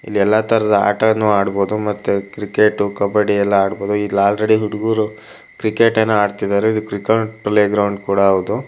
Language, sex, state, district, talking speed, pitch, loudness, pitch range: Kannada, male, Karnataka, Shimoga, 140 wpm, 105 Hz, -16 LUFS, 100-110 Hz